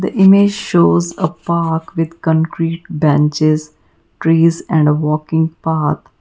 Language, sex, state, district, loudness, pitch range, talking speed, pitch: English, female, Karnataka, Bangalore, -15 LUFS, 155-170 Hz, 125 wpm, 160 Hz